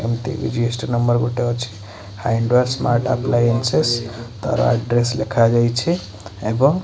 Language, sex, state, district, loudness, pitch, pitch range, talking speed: Odia, male, Odisha, Khordha, -19 LUFS, 120 Hz, 115-120 Hz, 125 wpm